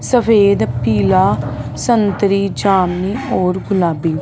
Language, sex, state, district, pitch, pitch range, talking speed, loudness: Hindi, male, Punjab, Fazilka, 185 Hz, 160-200 Hz, 85 wpm, -15 LUFS